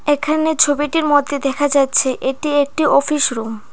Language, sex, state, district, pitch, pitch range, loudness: Bengali, female, Tripura, Dhalai, 290 Hz, 270-300 Hz, -16 LUFS